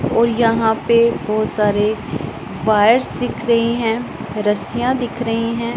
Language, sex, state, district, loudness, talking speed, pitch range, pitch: Hindi, female, Punjab, Pathankot, -18 LUFS, 135 wpm, 210-235 Hz, 225 Hz